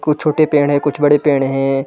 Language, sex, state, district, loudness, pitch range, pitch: Hindi, male, Chhattisgarh, Balrampur, -14 LUFS, 135-150 Hz, 145 Hz